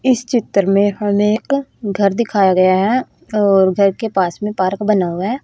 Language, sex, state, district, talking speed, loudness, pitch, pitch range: Hindi, female, Haryana, Rohtak, 200 wpm, -16 LUFS, 205 Hz, 195-230 Hz